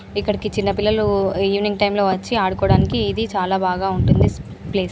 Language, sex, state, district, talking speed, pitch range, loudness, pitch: Telugu, female, Andhra Pradesh, Anantapur, 170 wpm, 190-210 Hz, -19 LUFS, 200 Hz